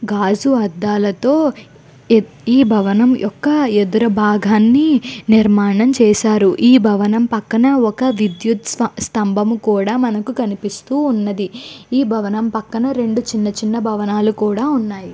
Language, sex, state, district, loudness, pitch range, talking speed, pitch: Telugu, female, Andhra Pradesh, Guntur, -15 LUFS, 210-245 Hz, 105 wpm, 220 Hz